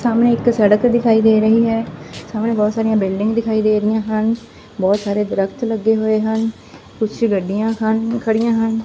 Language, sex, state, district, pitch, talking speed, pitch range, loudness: Punjabi, female, Punjab, Fazilka, 220 Hz, 175 wpm, 215-230 Hz, -17 LUFS